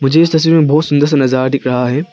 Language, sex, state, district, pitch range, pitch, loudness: Hindi, male, Arunachal Pradesh, Lower Dibang Valley, 130-160 Hz, 145 Hz, -12 LUFS